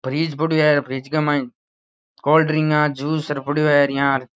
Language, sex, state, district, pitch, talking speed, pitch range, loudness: Rajasthani, male, Rajasthan, Nagaur, 145 Hz, 165 wpm, 135-155 Hz, -19 LUFS